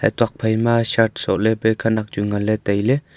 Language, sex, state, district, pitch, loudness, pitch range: Wancho, male, Arunachal Pradesh, Longding, 110 Hz, -19 LUFS, 110-115 Hz